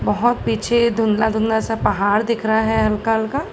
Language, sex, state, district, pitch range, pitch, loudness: Hindi, female, Uttar Pradesh, Gorakhpur, 215-230 Hz, 220 Hz, -18 LUFS